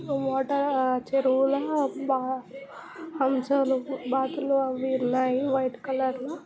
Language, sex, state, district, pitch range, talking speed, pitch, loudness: Telugu, female, Telangana, Karimnagar, 260-280 Hz, 75 wpm, 265 Hz, -26 LUFS